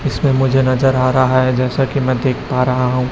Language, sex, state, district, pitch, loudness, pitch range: Hindi, male, Chhattisgarh, Raipur, 130 Hz, -15 LUFS, 130-135 Hz